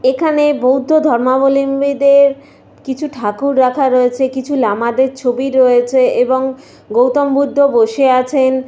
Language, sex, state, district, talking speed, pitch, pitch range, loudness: Bengali, female, West Bengal, Paschim Medinipur, 120 wpm, 265 Hz, 255-280 Hz, -13 LUFS